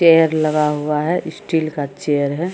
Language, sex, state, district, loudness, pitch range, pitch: Hindi, female, Bihar, Samastipur, -18 LUFS, 150-165 Hz, 155 Hz